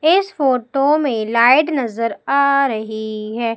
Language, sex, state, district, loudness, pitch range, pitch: Hindi, female, Madhya Pradesh, Umaria, -17 LUFS, 225-280 Hz, 250 Hz